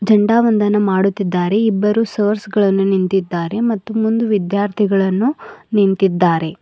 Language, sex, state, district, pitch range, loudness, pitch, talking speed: Kannada, female, Karnataka, Bidar, 195-220 Hz, -16 LUFS, 205 Hz, 100 wpm